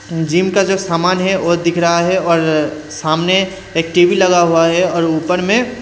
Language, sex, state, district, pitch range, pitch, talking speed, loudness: Hindi, male, Haryana, Rohtak, 165-185 Hz, 175 Hz, 195 wpm, -14 LUFS